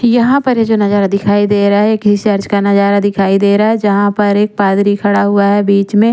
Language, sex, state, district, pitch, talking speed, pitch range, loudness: Hindi, female, Chandigarh, Chandigarh, 205 Hz, 225 wpm, 200-210 Hz, -11 LUFS